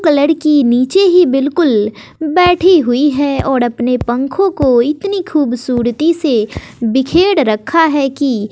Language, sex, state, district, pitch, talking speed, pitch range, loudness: Hindi, female, Bihar, West Champaran, 285 Hz, 135 wpm, 245-330 Hz, -12 LUFS